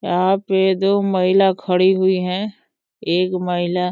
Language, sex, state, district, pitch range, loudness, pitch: Hindi, female, Uttar Pradesh, Deoria, 180-195 Hz, -18 LUFS, 185 Hz